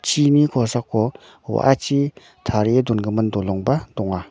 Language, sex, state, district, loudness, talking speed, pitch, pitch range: Garo, male, Meghalaya, North Garo Hills, -20 LUFS, 95 wpm, 115 Hz, 105-135 Hz